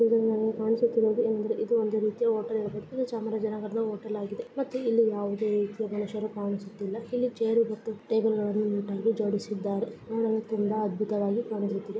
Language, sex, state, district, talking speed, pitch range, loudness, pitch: Kannada, female, Karnataka, Chamarajanagar, 115 wpm, 210-225 Hz, -29 LUFS, 220 Hz